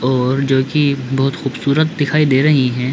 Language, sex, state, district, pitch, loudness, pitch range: Hindi, male, Chhattisgarh, Bilaspur, 135 Hz, -15 LUFS, 130-145 Hz